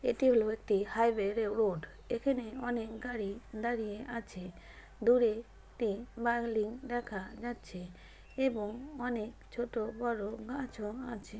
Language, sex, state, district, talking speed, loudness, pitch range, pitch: Bengali, female, West Bengal, Paschim Medinipur, 110 wpm, -35 LUFS, 215-240 Hz, 230 Hz